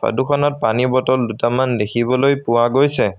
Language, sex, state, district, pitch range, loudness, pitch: Assamese, male, Assam, Sonitpur, 120-135 Hz, -17 LUFS, 130 Hz